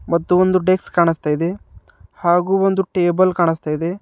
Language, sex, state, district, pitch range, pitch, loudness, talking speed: Kannada, male, Karnataka, Bidar, 170-185 Hz, 175 Hz, -17 LUFS, 150 wpm